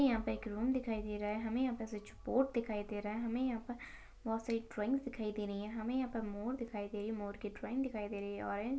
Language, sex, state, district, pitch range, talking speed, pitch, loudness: Hindi, female, Maharashtra, Sindhudurg, 210-245 Hz, 285 wpm, 225 Hz, -39 LUFS